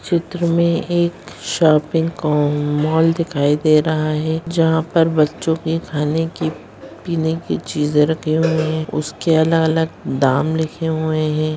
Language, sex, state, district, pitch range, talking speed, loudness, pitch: Hindi, female, Bihar, Bhagalpur, 155-165 Hz, 145 wpm, -18 LUFS, 160 Hz